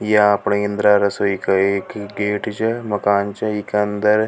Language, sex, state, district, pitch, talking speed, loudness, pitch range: Rajasthani, male, Rajasthan, Nagaur, 105 Hz, 180 wpm, -18 LUFS, 100-105 Hz